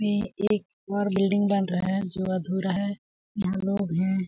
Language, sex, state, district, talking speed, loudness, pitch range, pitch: Hindi, female, Chhattisgarh, Balrampur, 185 wpm, -27 LUFS, 190-200 Hz, 195 Hz